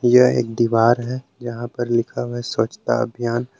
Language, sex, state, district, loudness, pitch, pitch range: Hindi, male, Jharkhand, Palamu, -20 LUFS, 120 Hz, 115-125 Hz